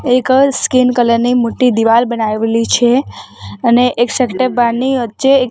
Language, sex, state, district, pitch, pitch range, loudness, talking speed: Gujarati, female, Gujarat, Gandhinagar, 245 Hz, 230-255 Hz, -12 LUFS, 165 wpm